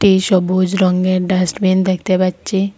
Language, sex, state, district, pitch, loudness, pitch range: Bengali, female, Assam, Hailakandi, 185 Hz, -15 LUFS, 185-190 Hz